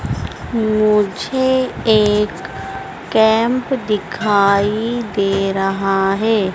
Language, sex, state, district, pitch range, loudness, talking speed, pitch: Hindi, female, Madhya Pradesh, Dhar, 195-225 Hz, -16 LUFS, 65 wpm, 210 Hz